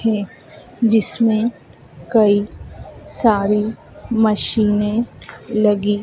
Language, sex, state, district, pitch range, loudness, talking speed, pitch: Hindi, female, Madhya Pradesh, Dhar, 205-225 Hz, -17 LUFS, 60 wpm, 215 Hz